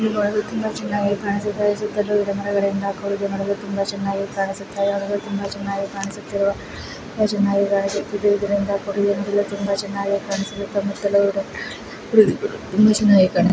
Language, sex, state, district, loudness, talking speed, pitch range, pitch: Kannada, female, Karnataka, Belgaum, -21 LUFS, 125 wpm, 200-205 Hz, 200 Hz